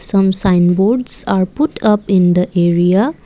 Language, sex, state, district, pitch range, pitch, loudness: English, female, Assam, Kamrup Metropolitan, 180-210 Hz, 190 Hz, -13 LUFS